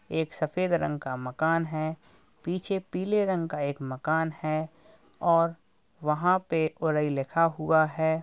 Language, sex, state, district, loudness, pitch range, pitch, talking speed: Hindi, male, Uttar Pradesh, Jalaun, -28 LUFS, 155-165 Hz, 160 Hz, 145 wpm